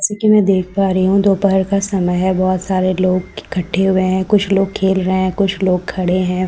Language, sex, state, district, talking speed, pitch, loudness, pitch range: Hindi, female, Delhi, New Delhi, 240 wpm, 190 Hz, -15 LUFS, 185-195 Hz